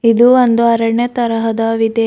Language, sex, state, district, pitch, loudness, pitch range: Kannada, female, Karnataka, Bidar, 230 Hz, -13 LUFS, 225-240 Hz